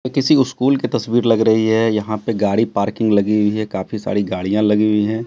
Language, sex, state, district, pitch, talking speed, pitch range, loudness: Hindi, male, Bihar, Katihar, 110 Hz, 240 wpm, 105-115 Hz, -17 LUFS